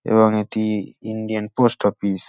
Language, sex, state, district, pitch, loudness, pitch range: Bengali, male, West Bengal, Dakshin Dinajpur, 110 Hz, -21 LUFS, 105-110 Hz